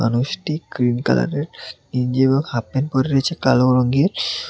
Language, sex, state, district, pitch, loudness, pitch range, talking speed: Bengali, male, Tripura, West Tripura, 130 Hz, -19 LUFS, 125-140 Hz, 135 wpm